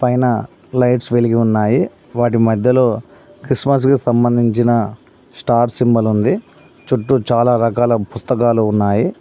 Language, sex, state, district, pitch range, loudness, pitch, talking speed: Telugu, male, Telangana, Mahabubabad, 115-125 Hz, -15 LUFS, 120 Hz, 110 wpm